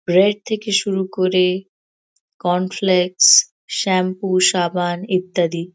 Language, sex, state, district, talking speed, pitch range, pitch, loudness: Bengali, female, West Bengal, Kolkata, 95 wpm, 180-190 Hz, 185 Hz, -17 LUFS